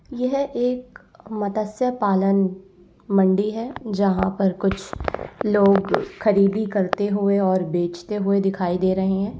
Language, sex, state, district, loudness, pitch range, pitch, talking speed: Hindi, female, Uttar Pradesh, Lalitpur, -21 LUFS, 190-215 Hz, 200 Hz, 130 wpm